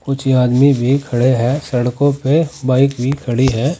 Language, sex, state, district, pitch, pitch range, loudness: Hindi, male, Uttar Pradesh, Saharanpur, 130 Hz, 125-140 Hz, -15 LUFS